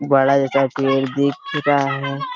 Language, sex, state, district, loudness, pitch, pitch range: Hindi, male, Jharkhand, Sahebganj, -18 LUFS, 140 Hz, 135-140 Hz